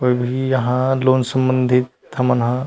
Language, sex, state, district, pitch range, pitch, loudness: Chhattisgarhi, male, Chhattisgarh, Rajnandgaon, 125-130 Hz, 125 Hz, -18 LUFS